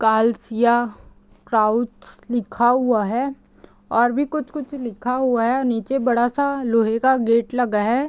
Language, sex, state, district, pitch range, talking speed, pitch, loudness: Hindi, female, Bihar, Gopalganj, 230-260 Hz, 140 wpm, 240 Hz, -20 LUFS